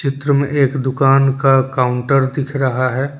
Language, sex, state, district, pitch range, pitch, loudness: Hindi, male, Jharkhand, Deoghar, 130-140 Hz, 135 Hz, -15 LUFS